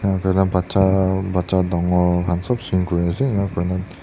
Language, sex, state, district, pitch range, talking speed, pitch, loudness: Nagamese, male, Nagaland, Dimapur, 90-95 Hz, 150 wpm, 95 Hz, -19 LUFS